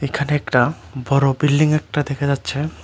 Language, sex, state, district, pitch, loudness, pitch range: Bengali, male, Tripura, West Tripura, 140 Hz, -19 LUFS, 140-150 Hz